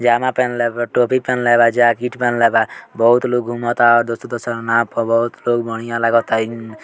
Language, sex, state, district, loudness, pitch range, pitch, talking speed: Bhojpuri, male, Bihar, Muzaffarpur, -16 LUFS, 115-120 Hz, 120 Hz, 195 wpm